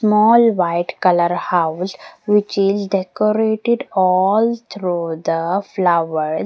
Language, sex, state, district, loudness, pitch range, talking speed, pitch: English, female, Maharashtra, Mumbai Suburban, -17 LUFS, 175-215 Hz, 100 wpm, 190 Hz